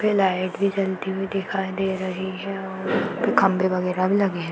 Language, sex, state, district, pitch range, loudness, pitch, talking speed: Hindi, female, Uttar Pradesh, Varanasi, 185-195 Hz, -23 LUFS, 190 Hz, 225 wpm